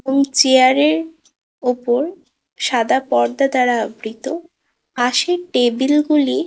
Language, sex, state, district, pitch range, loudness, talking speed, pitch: Bengali, female, West Bengal, Kolkata, 250-305 Hz, -17 LUFS, 100 wpm, 270 Hz